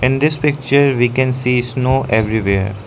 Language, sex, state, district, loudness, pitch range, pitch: English, male, Arunachal Pradesh, Lower Dibang Valley, -15 LUFS, 110-135 Hz, 130 Hz